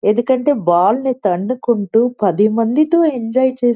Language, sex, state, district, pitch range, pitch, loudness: Telugu, female, Telangana, Nalgonda, 210-260 Hz, 240 Hz, -15 LUFS